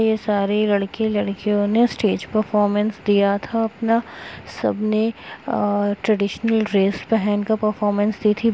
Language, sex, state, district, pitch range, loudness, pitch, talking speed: Hindi, female, Uttar Pradesh, Etah, 205-220 Hz, -20 LUFS, 210 Hz, 135 wpm